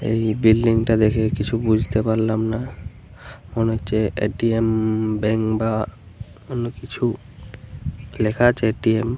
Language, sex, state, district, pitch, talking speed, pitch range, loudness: Bengali, male, Jharkhand, Jamtara, 110 Hz, 125 wpm, 110-115 Hz, -21 LUFS